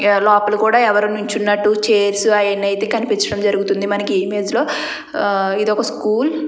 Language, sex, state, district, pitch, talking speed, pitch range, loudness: Telugu, female, Andhra Pradesh, Chittoor, 210 Hz, 155 wpm, 200-215 Hz, -16 LUFS